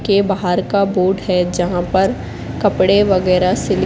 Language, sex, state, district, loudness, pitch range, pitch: Hindi, female, Madhya Pradesh, Katni, -16 LUFS, 180-195 Hz, 185 Hz